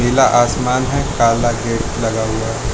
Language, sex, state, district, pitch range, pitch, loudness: Hindi, male, Arunachal Pradesh, Lower Dibang Valley, 115-125 Hz, 120 Hz, -16 LUFS